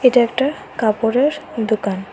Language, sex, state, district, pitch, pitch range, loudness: Bengali, female, Assam, Hailakandi, 230 Hz, 220-265 Hz, -18 LUFS